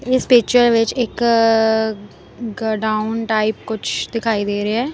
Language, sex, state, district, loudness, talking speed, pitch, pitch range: Punjabi, female, Punjab, Kapurthala, -17 LUFS, 135 wpm, 225 Hz, 220-235 Hz